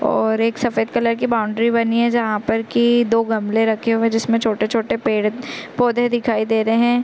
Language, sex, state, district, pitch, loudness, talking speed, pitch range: Hindi, female, Chhattisgarh, Korba, 230 Hz, -18 LUFS, 220 wpm, 220-235 Hz